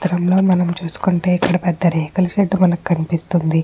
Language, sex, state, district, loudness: Telugu, female, Andhra Pradesh, Chittoor, -17 LUFS